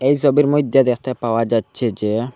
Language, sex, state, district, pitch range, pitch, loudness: Bengali, male, Assam, Hailakandi, 115-140 Hz, 125 Hz, -17 LUFS